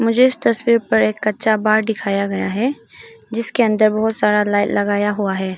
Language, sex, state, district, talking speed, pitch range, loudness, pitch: Hindi, female, Arunachal Pradesh, Lower Dibang Valley, 185 wpm, 205-230 Hz, -17 LUFS, 215 Hz